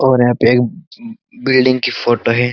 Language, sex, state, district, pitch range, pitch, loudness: Hindi, male, Uttarakhand, Uttarkashi, 120-165 Hz, 125 Hz, -14 LUFS